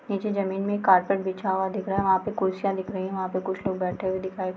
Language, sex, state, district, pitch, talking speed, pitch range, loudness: Hindi, female, Bihar, Darbhanga, 190 Hz, 305 wpm, 185-195 Hz, -26 LUFS